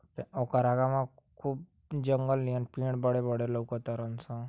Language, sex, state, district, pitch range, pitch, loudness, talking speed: Bhojpuri, male, Uttar Pradesh, Ghazipur, 120-135 Hz, 125 Hz, -32 LUFS, 145 wpm